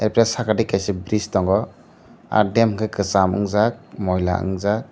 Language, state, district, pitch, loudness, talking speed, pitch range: Kokborok, Tripura, Dhalai, 105 Hz, -20 LUFS, 145 wpm, 95-110 Hz